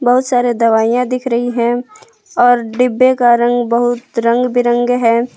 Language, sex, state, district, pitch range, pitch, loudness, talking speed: Hindi, female, Jharkhand, Palamu, 235-250 Hz, 245 Hz, -13 LUFS, 155 wpm